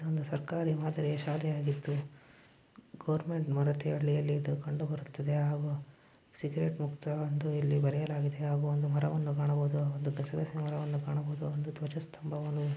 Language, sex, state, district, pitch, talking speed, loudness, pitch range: Kannada, male, Karnataka, Belgaum, 150 Hz, 125 wpm, -34 LUFS, 145-155 Hz